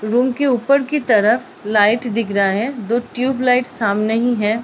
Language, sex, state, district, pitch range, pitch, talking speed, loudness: Hindi, female, Bihar, Gopalganj, 215-255 Hz, 235 Hz, 180 wpm, -17 LUFS